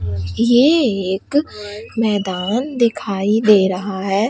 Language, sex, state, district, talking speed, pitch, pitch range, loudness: Hindi, female, Bihar, Katihar, 95 wpm, 210 Hz, 190-235 Hz, -17 LUFS